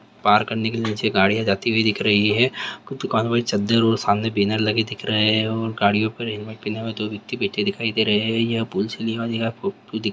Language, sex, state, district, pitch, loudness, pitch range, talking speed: Hindi, male, Chhattisgarh, Raigarh, 110 Hz, -21 LUFS, 105-115 Hz, 190 wpm